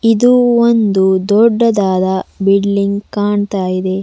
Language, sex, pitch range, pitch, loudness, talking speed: Kannada, female, 190-225 Hz, 200 Hz, -13 LUFS, 90 wpm